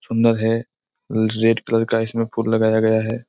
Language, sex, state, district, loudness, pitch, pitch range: Hindi, male, Bihar, Araria, -19 LUFS, 115 Hz, 110-115 Hz